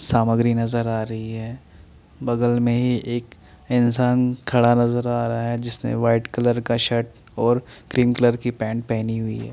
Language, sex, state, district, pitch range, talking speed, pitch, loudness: Hindi, male, Chandigarh, Chandigarh, 115-120 Hz, 175 wpm, 120 Hz, -21 LUFS